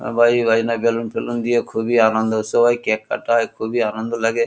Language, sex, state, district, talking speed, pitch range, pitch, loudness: Bengali, male, West Bengal, Kolkata, 175 wpm, 110-120 Hz, 115 Hz, -19 LUFS